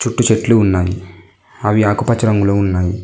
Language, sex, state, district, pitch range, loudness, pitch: Telugu, male, Telangana, Mahabubabad, 95-110 Hz, -15 LUFS, 105 Hz